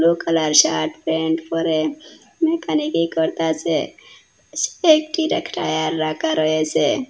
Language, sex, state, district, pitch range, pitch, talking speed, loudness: Bengali, female, Assam, Hailakandi, 155-170 Hz, 160 Hz, 85 wpm, -19 LUFS